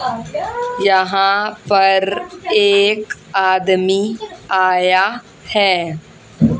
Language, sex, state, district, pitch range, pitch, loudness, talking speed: Hindi, female, Haryana, Jhajjar, 190-220 Hz, 195 Hz, -15 LUFS, 55 wpm